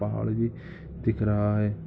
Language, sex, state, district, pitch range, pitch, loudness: Hindi, male, Bihar, Samastipur, 105-115 Hz, 110 Hz, -27 LUFS